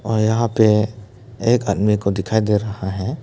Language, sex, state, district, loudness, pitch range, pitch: Hindi, male, Arunachal Pradesh, Papum Pare, -19 LUFS, 100-110 Hz, 105 Hz